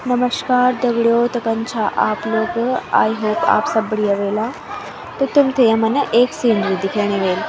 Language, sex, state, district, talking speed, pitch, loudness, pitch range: Garhwali, female, Uttarakhand, Tehri Garhwal, 160 wpm, 230 Hz, -17 LUFS, 215-250 Hz